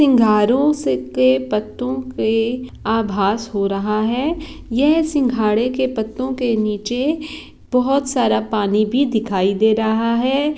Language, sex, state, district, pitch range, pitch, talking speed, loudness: Hindi, female, Bihar, East Champaran, 210-260 Hz, 225 Hz, 125 wpm, -18 LUFS